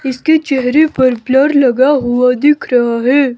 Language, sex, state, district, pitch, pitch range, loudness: Hindi, male, Himachal Pradesh, Shimla, 265 Hz, 250-285 Hz, -12 LUFS